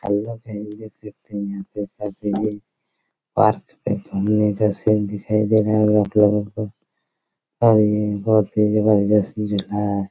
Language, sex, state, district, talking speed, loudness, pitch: Hindi, male, Chhattisgarh, Raigarh, 120 wpm, -20 LUFS, 105 Hz